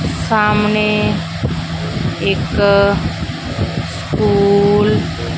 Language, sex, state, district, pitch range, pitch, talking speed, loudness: Punjabi, female, Punjab, Fazilka, 200-210 Hz, 200 Hz, 45 wpm, -15 LUFS